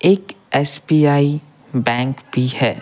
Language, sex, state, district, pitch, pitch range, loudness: Hindi, male, Bihar, Patna, 140 Hz, 130-145 Hz, -18 LUFS